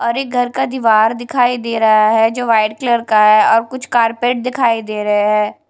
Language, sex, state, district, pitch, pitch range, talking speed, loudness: Hindi, female, Punjab, Kapurthala, 230 Hz, 215-245 Hz, 210 wpm, -14 LUFS